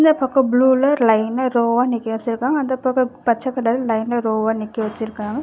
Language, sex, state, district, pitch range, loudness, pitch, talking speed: Tamil, female, Karnataka, Bangalore, 225-260 Hz, -19 LUFS, 240 Hz, 165 wpm